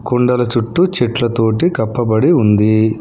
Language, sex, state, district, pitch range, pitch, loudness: Telugu, male, Telangana, Hyderabad, 110-125 Hz, 120 Hz, -14 LUFS